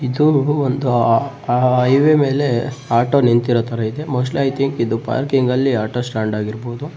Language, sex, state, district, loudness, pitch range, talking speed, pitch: Kannada, male, Karnataka, Bellary, -17 LUFS, 120-140 Hz, 140 wpm, 125 Hz